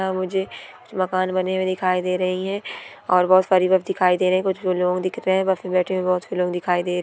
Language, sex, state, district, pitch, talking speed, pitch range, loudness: Hindi, female, Bihar, Gopalganj, 185 Hz, 240 wpm, 180-190 Hz, -21 LUFS